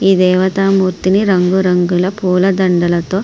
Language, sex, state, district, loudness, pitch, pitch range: Telugu, female, Andhra Pradesh, Srikakulam, -13 LUFS, 185 Hz, 180-190 Hz